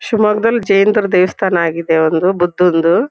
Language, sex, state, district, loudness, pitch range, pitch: Kannada, female, Karnataka, Shimoga, -13 LUFS, 170-210 Hz, 185 Hz